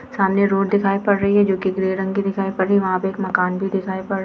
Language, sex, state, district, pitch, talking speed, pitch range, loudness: Hindi, female, Jharkhand, Jamtara, 195 Hz, 310 wpm, 190-200 Hz, -19 LUFS